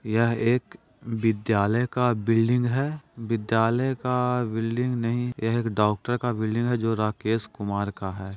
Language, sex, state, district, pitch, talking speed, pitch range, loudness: Hindi, male, Bihar, Jahanabad, 115 Hz, 150 wpm, 110-125 Hz, -25 LUFS